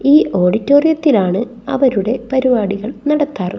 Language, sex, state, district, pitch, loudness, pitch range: Malayalam, female, Kerala, Kasaragod, 255 Hz, -15 LUFS, 205-285 Hz